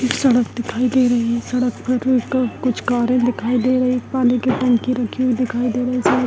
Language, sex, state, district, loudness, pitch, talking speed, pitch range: Hindi, female, Bihar, Darbhanga, -18 LUFS, 250 Hz, 230 wpm, 245-255 Hz